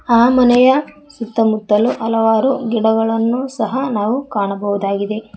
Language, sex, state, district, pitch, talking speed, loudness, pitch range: Kannada, female, Karnataka, Koppal, 225 Hz, 90 wpm, -15 LUFS, 215-250 Hz